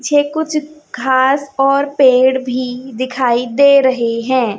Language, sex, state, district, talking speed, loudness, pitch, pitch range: Hindi, female, Chhattisgarh, Raipur, 130 wpm, -14 LUFS, 260 Hz, 250-280 Hz